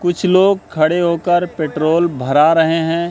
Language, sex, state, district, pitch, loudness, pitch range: Hindi, male, Madhya Pradesh, Katni, 170 Hz, -15 LUFS, 155-175 Hz